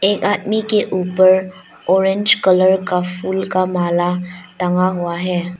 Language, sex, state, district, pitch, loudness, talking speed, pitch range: Hindi, female, Arunachal Pradesh, Lower Dibang Valley, 185 Hz, -16 LUFS, 140 wpm, 180-190 Hz